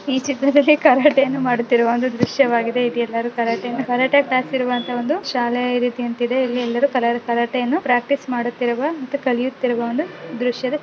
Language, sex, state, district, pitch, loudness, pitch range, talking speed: Kannada, female, Karnataka, Dakshina Kannada, 245 Hz, -19 LUFS, 240-270 Hz, 125 wpm